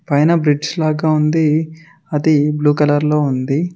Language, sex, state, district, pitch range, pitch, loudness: Telugu, male, Telangana, Mahabubabad, 150-160 Hz, 150 Hz, -15 LUFS